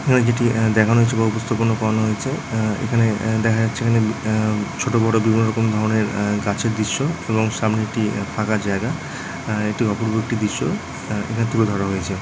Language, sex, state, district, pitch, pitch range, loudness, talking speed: Bengali, male, West Bengal, Dakshin Dinajpur, 110 Hz, 110-115 Hz, -20 LUFS, 200 wpm